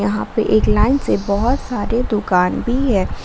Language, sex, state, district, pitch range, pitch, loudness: Hindi, female, Jharkhand, Garhwa, 180-250 Hz, 210 Hz, -17 LUFS